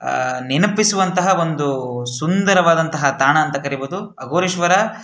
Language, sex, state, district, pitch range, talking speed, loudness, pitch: Kannada, male, Karnataka, Shimoga, 140-185 Hz, 120 wpm, -17 LUFS, 165 Hz